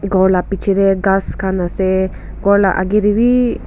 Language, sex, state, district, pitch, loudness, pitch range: Nagamese, female, Nagaland, Kohima, 195 Hz, -15 LUFS, 190-200 Hz